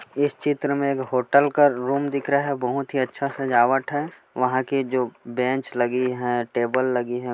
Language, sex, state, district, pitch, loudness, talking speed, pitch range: Hindi, male, Chhattisgarh, Korba, 130 Hz, -23 LUFS, 205 wpm, 125-140 Hz